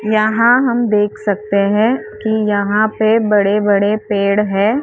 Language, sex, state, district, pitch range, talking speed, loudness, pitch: Hindi, female, Maharashtra, Mumbai Suburban, 205-220 Hz, 150 wpm, -14 LUFS, 210 Hz